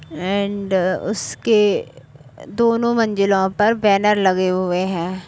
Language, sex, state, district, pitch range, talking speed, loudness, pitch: Hindi, female, Uttar Pradesh, Jalaun, 180-210 Hz, 100 wpm, -18 LUFS, 190 Hz